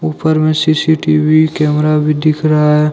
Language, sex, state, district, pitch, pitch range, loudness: Hindi, male, Jharkhand, Deoghar, 155 Hz, 150-155 Hz, -12 LUFS